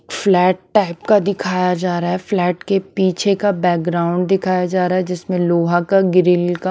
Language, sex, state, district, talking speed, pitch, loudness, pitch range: Hindi, female, Himachal Pradesh, Shimla, 195 wpm, 185 Hz, -17 LUFS, 175-195 Hz